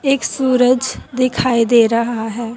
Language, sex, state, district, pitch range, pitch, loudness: Hindi, female, Haryana, Jhajjar, 230-255 Hz, 245 Hz, -15 LUFS